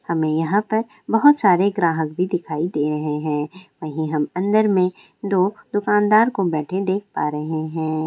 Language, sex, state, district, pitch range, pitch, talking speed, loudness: Hindi, female, Bihar, Bhagalpur, 155-205 Hz, 180 Hz, 165 wpm, -20 LUFS